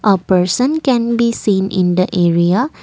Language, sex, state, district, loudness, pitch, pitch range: English, female, Assam, Kamrup Metropolitan, -14 LUFS, 200 Hz, 180-235 Hz